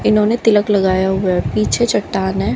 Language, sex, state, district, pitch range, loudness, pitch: Hindi, female, Haryana, Jhajjar, 180-205 Hz, -15 LUFS, 190 Hz